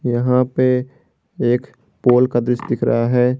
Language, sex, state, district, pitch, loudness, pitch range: Hindi, male, Jharkhand, Garhwa, 125 Hz, -17 LUFS, 120-125 Hz